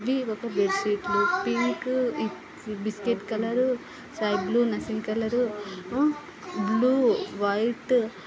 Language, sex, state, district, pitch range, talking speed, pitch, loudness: Telugu, female, Andhra Pradesh, Anantapur, 215-260 Hz, 110 wpm, 235 Hz, -26 LUFS